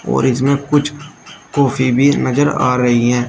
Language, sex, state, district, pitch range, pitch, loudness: Hindi, male, Uttar Pradesh, Shamli, 125-145 Hz, 135 Hz, -15 LUFS